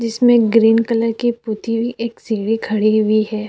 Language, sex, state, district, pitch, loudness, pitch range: Hindi, female, Uttar Pradesh, Jyotiba Phule Nagar, 225 Hz, -16 LUFS, 215-230 Hz